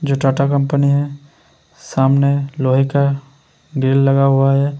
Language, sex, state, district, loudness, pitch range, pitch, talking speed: Hindi, male, Uttar Pradesh, Hamirpur, -15 LUFS, 135-140 Hz, 140 Hz, 140 wpm